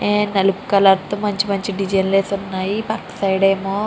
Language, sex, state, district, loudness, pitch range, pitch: Telugu, female, Andhra Pradesh, Chittoor, -18 LUFS, 195-205 Hz, 195 Hz